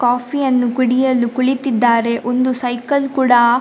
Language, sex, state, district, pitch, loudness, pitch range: Kannada, female, Karnataka, Dakshina Kannada, 250 Hz, -16 LUFS, 240-260 Hz